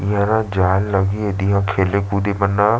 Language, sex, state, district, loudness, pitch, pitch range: Chhattisgarhi, male, Chhattisgarh, Sarguja, -18 LUFS, 100 Hz, 95-100 Hz